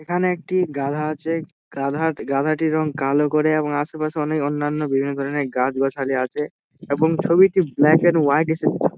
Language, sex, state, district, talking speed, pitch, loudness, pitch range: Bengali, male, West Bengal, Dakshin Dinajpur, 160 wpm, 150 Hz, -20 LUFS, 140-160 Hz